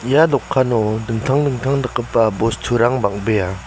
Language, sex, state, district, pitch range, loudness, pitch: Garo, male, Meghalaya, West Garo Hills, 110-130 Hz, -18 LUFS, 120 Hz